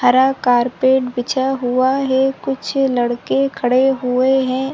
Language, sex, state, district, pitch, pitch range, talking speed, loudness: Hindi, female, Chhattisgarh, Sarguja, 260 Hz, 250-270 Hz, 125 wpm, -16 LUFS